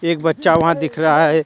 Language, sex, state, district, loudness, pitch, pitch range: Hindi, male, Jharkhand, Deoghar, -16 LUFS, 160 Hz, 160-165 Hz